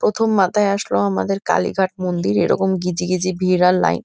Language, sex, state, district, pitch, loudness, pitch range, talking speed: Bengali, female, West Bengal, North 24 Parganas, 185 Hz, -18 LUFS, 180-195 Hz, 180 wpm